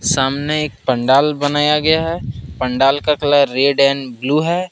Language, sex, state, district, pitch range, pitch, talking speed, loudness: Hindi, male, Jharkhand, Ranchi, 135-150 Hz, 145 Hz, 165 wpm, -16 LUFS